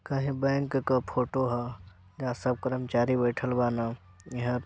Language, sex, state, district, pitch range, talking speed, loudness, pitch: Bhojpuri, male, Bihar, Gopalganj, 120-130 Hz, 140 wpm, -29 LUFS, 125 Hz